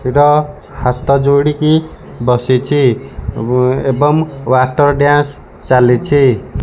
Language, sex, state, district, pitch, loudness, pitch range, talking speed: Odia, male, Odisha, Malkangiri, 135 Hz, -12 LUFS, 125-145 Hz, 70 wpm